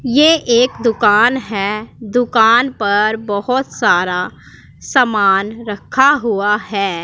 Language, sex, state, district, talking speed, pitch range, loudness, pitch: Hindi, female, Punjab, Pathankot, 100 wpm, 205-245 Hz, -14 LUFS, 220 Hz